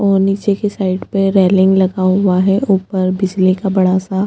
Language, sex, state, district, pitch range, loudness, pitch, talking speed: Hindi, female, Chhattisgarh, Bastar, 185-195 Hz, -14 LUFS, 190 Hz, 210 wpm